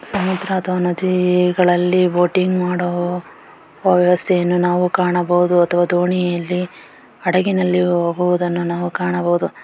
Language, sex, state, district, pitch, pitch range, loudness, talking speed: Kannada, female, Karnataka, Bellary, 180 Hz, 175-180 Hz, -17 LUFS, 95 wpm